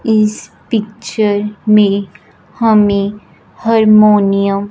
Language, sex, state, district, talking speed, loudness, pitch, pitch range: Hindi, male, Punjab, Fazilka, 75 wpm, -12 LUFS, 210 Hz, 200-215 Hz